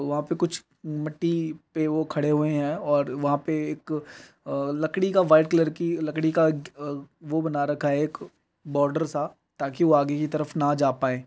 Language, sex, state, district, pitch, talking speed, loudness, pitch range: Hindi, male, Uttar Pradesh, Budaun, 150 Hz, 195 wpm, -25 LUFS, 145-160 Hz